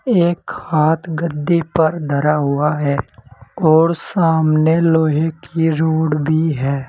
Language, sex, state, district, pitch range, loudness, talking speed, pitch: Hindi, male, Uttar Pradesh, Saharanpur, 150-165 Hz, -16 LUFS, 120 wpm, 160 Hz